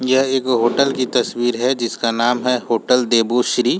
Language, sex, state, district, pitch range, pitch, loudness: Hindi, male, Jharkhand, Jamtara, 120-130 Hz, 125 Hz, -17 LUFS